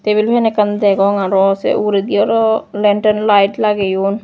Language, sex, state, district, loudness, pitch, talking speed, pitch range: Chakma, female, Tripura, West Tripura, -14 LUFS, 205 Hz, 155 wpm, 200-215 Hz